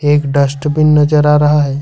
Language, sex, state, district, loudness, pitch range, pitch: Hindi, male, Jharkhand, Ranchi, -11 LUFS, 140-150 Hz, 150 Hz